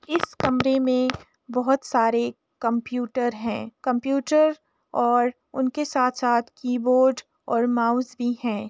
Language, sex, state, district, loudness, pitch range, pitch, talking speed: Hindi, female, Uttar Pradesh, Jalaun, -23 LUFS, 240-265 Hz, 250 Hz, 110 wpm